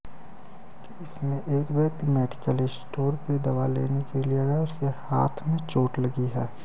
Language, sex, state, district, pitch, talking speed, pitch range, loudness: Hindi, male, Uttar Pradesh, Ghazipur, 140 Hz, 160 wpm, 130-145 Hz, -27 LUFS